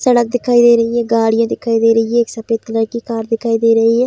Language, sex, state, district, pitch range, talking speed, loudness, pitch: Hindi, female, Bihar, Supaul, 225-235 Hz, 295 wpm, -14 LUFS, 230 Hz